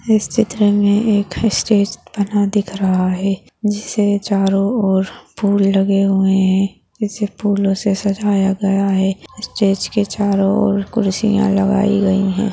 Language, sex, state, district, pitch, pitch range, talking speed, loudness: Hindi, female, Maharashtra, Dhule, 200 Hz, 195-210 Hz, 145 wpm, -16 LUFS